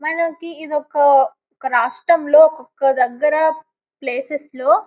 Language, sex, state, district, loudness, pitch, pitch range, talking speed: Telugu, female, Telangana, Karimnagar, -17 LUFS, 300 Hz, 270-315 Hz, 110 wpm